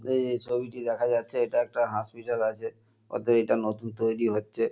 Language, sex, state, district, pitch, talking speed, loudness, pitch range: Bengali, male, West Bengal, North 24 Parganas, 115 Hz, 180 wpm, -28 LUFS, 115-120 Hz